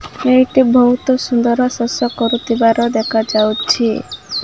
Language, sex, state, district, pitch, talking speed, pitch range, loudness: Odia, female, Odisha, Malkangiri, 240 Hz, 80 wpm, 230-250 Hz, -14 LUFS